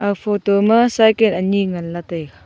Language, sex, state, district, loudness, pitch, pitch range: Wancho, female, Arunachal Pradesh, Longding, -16 LUFS, 200 Hz, 175-220 Hz